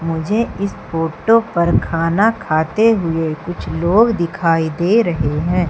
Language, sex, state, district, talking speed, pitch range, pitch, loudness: Hindi, female, Madhya Pradesh, Umaria, 135 wpm, 165-215 Hz, 170 Hz, -16 LUFS